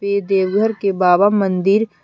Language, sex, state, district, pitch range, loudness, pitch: Hindi, female, Jharkhand, Deoghar, 190-205 Hz, -16 LUFS, 200 Hz